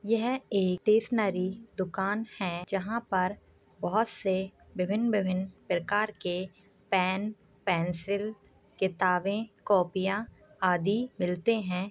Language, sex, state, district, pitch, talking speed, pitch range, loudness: Hindi, female, Uttar Pradesh, Jyotiba Phule Nagar, 195 Hz, 100 wpm, 185-215 Hz, -30 LUFS